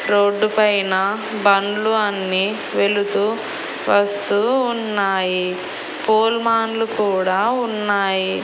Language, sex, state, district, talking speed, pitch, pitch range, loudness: Telugu, female, Andhra Pradesh, Annamaya, 85 wpm, 205 Hz, 195-220 Hz, -19 LUFS